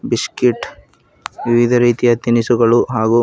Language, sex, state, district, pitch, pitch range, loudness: Kannada, male, Karnataka, Bidar, 120 Hz, 115-120 Hz, -15 LUFS